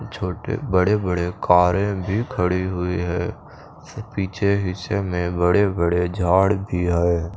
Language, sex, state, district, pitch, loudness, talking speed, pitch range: Hindi, male, Chandigarh, Chandigarh, 90 Hz, -21 LUFS, 130 wpm, 90-100 Hz